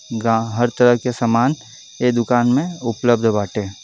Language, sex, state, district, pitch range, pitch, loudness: Bhojpuri, male, Uttar Pradesh, Deoria, 115-125 Hz, 120 Hz, -18 LUFS